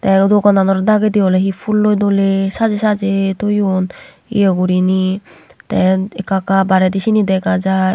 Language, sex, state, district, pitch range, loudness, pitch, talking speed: Chakma, female, Tripura, West Tripura, 190-205 Hz, -14 LUFS, 195 Hz, 135 wpm